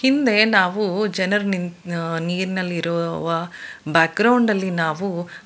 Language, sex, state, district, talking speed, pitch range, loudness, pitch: Kannada, female, Karnataka, Bangalore, 110 wpm, 170-205 Hz, -20 LUFS, 185 Hz